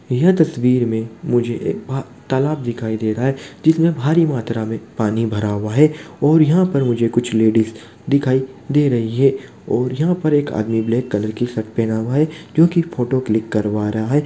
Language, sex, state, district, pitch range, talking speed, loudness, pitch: Hindi, male, Bihar, Muzaffarpur, 110-145 Hz, 200 wpm, -18 LUFS, 125 Hz